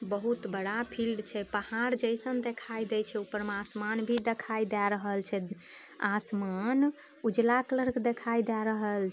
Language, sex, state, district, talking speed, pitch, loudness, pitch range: Maithili, female, Bihar, Samastipur, 150 wpm, 220 Hz, -32 LUFS, 205-235 Hz